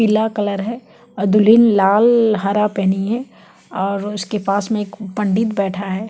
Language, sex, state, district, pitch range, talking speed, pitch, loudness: Hindi, female, Chhattisgarh, Kabirdham, 195-220 Hz, 165 wpm, 210 Hz, -17 LUFS